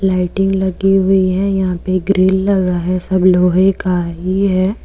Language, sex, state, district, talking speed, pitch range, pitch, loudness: Hindi, female, Jharkhand, Deoghar, 175 wpm, 185-195 Hz, 185 Hz, -14 LUFS